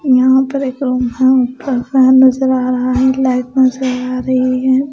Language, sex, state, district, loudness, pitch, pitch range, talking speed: Hindi, female, Punjab, Pathankot, -13 LUFS, 260 Hz, 255-260 Hz, 195 wpm